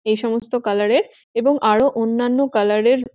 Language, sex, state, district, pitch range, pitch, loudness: Bengali, female, West Bengal, Jhargram, 215-260 Hz, 235 Hz, -18 LUFS